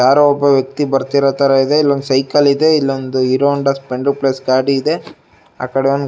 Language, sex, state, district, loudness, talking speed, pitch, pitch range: Kannada, male, Karnataka, Shimoga, -14 LUFS, 180 wpm, 135 Hz, 135-140 Hz